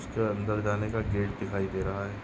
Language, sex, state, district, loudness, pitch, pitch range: Hindi, male, Goa, North and South Goa, -31 LUFS, 100 Hz, 100-105 Hz